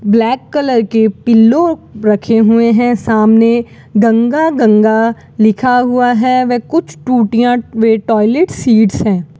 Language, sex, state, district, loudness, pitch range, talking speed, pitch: Hindi, female, Rajasthan, Bikaner, -11 LUFS, 220-245 Hz, 130 wpm, 230 Hz